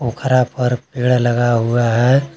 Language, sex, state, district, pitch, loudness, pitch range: Hindi, male, Jharkhand, Garhwa, 125 Hz, -16 LUFS, 120-130 Hz